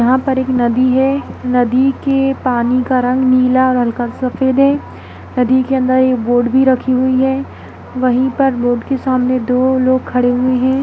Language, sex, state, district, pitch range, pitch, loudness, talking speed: Kumaoni, female, Uttarakhand, Tehri Garhwal, 250-260 Hz, 255 Hz, -14 LUFS, 190 wpm